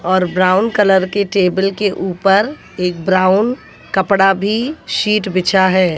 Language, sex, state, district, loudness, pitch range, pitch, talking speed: Hindi, female, Haryana, Jhajjar, -15 LUFS, 185-205 Hz, 190 Hz, 140 wpm